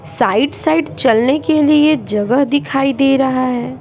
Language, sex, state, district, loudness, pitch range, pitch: Hindi, female, Bihar, Patna, -14 LUFS, 250-300 Hz, 270 Hz